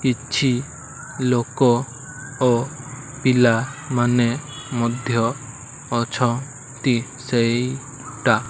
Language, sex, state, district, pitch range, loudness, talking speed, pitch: Odia, male, Odisha, Malkangiri, 120-135 Hz, -21 LUFS, 55 wpm, 130 Hz